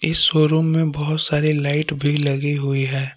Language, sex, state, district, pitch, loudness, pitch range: Hindi, male, Jharkhand, Palamu, 150 Hz, -18 LUFS, 140-155 Hz